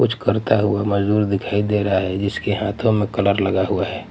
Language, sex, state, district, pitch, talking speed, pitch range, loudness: Hindi, male, Punjab, Pathankot, 100 Hz, 220 wpm, 100-105 Hz, -19 LUFS